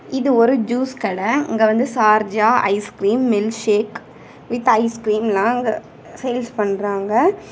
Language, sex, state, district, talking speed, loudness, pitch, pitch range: Tamil, female, Tamil Nadu, Kanyakumari, 120 wpm, -18 LUFS, 225 Hz, 210-245 Hz